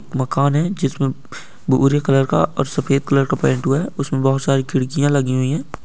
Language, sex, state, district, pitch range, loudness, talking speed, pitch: Hindi, male, Bihar, Supaul, 135-145 Hz, -18 LUFS, 195 wpm, 135 Hz